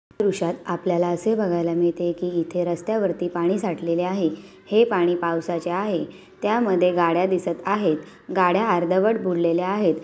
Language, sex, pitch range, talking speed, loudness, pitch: Awadhi, female, 170-190 Hz, 135 wpm, -22 LUFS, 175 Hz